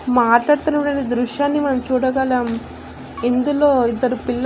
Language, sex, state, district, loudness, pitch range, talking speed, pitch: Telugu, female, Andhra Pradesh, Annamaya, -18 LUFS, 245-285 Hz, 95 wpm, 255 Hz